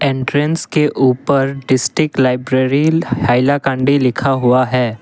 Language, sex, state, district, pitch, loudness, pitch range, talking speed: Hindi, male, Assam, Kamrup Metropolitan, 135 Hz, -15 LUFS, 125-140 Hz, 110 wpm